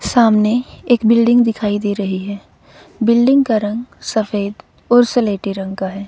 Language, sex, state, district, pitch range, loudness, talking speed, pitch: Hindi, female, Haryana, Rohtak, 200-235 Hz, -16 LUFS, 160 wpm, 220 Hz